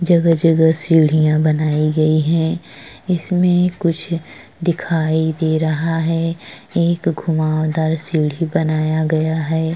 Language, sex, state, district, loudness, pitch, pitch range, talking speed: Hindi, female, Chhattisgarh, Korba, -17 LUFS, 160 Hz, 155-170 Hz, 105 wpm